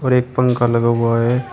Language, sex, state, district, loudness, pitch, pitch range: Hindi, male, Uttar Pradesh, Shamli, -16 LUFS, 120 Hz, 115-125 Hz